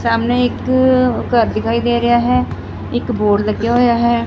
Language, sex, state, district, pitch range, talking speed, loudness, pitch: Punjabi, female, Punjab, Fazilka, 230-245 Hz, 170 wpm, -15 LUFS, 240 Hz